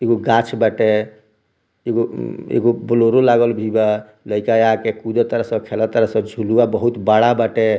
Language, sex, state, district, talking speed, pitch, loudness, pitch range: Bhojpuri, male, Bihar, Muzaffarpur, 140 wpm, 110 Hz, -17 LUFS, 110-115 Hz